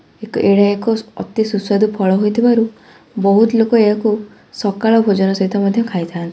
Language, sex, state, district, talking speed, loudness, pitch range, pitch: Odia, female, Odisha, Khordha, 140 wpm, -15 LUFS, 200-225 Hz, 210 Hz